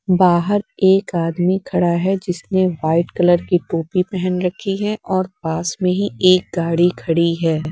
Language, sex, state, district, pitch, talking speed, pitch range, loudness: Hindi, female, Bihar, West Champaran, 180 Hz, 165 wpm, 170-185 Hz, -18 LUFS